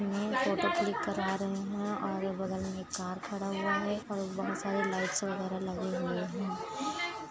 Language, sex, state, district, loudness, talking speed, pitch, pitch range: Hindi, female, Chhattisgarh, Kabirdham, -34 LUFS, 180 wpm, 195 Hz, 190-205 Hz